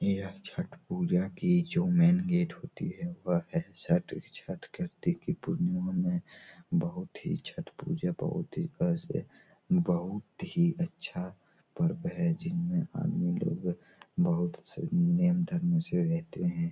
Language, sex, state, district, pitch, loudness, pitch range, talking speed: Hindi, male, Bihar, Araria, 175 Hz, -32 LUFS, 170-180 Hz, 135 wpm